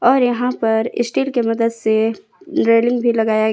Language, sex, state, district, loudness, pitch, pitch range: Hindi, female, Jharkhand, Palamu, -17 LUFS, 235 Hz, 225-245 Hz